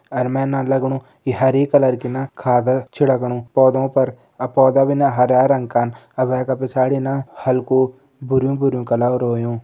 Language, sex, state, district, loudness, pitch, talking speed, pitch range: Hindi, male, Uttarakhand, Tehri Garhwal, -18 LUFS, 130 Hz, 180 wpm, 125-135 Hz